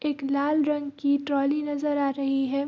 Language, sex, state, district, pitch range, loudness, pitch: Hindi, female, Bihar, Darbhanga, 275-295 Hz, -26 LUFS, 280 Hz